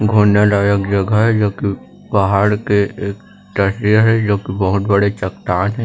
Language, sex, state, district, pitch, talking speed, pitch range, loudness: Chhattisgarhi, male, Chhattisgarh, Rajnandgaon, 100 Hz, 185 wpm, 100-105 Hz, -15 LUFS